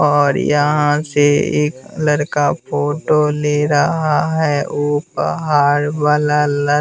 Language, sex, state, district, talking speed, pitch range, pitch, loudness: Hindi, male, Bihar, West Champaran, 115 wpm, 145-150 Hz, 150 Hz, -16 LUFS